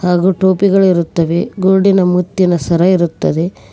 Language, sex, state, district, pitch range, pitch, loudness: Kannada, female, Karnataka, Koppal, 170-190 Hz, 180 Hz, -12 LUFS